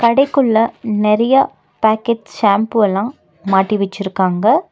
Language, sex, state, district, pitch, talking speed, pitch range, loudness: Tamil, female, Tamil Nadu, Nilgiris, 215 Hz, 90 wpm, 200-230 Hz, -15 LUFS